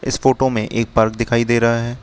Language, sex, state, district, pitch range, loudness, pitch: Hindi, male, Uttar Pradesh, Lucknow, 115-125 Hz, -17 LUFS, 115 Hz